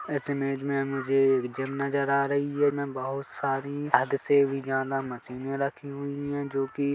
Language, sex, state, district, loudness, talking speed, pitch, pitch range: Hindi, male, Chhattisgarh, Kabirdham, -28 LUFS, 200 wpm, 140 Hz, 135-140 Hz